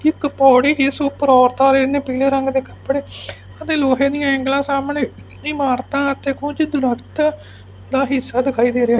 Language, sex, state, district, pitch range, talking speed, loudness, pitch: Punjabi, male, Punjab, Fazilka, 255-280 Hz, 165 wpm, -17 LUFS, 270 Hz